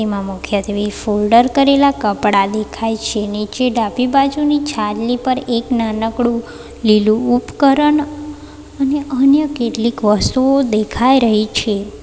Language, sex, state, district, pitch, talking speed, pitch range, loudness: Gujarati, female, Gujarat, Valsad, 235 Hz, 115 wpm, 215-270 Hz, -15 LUFS